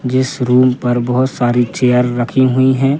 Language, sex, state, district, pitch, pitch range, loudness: Hindi, male, Madhya Pradesh, Katni, 125 Hz, 120-130 Hz, -14 LUFS